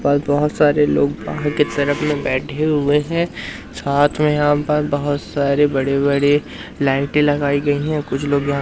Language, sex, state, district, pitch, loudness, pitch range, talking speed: Hindi, male, Madhya Pradesh, Umaria, 145 Hz, -18 LUFS, 140-150 Hz, 180 wpm